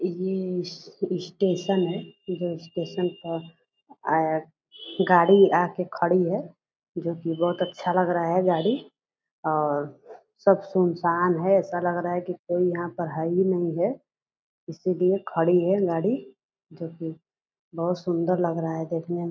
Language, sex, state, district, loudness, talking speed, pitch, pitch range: Angika, female, Bihar, Purnia, -25 LUFS, 155 wpm, 175 Hz, 170-185 Hz